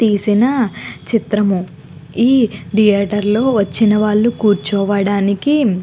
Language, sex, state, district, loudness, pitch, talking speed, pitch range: Telugu, female, Andhra Pradesh, Guntur, -15 LUFS, 210 Hz, 70 wpm, 200-225 Hz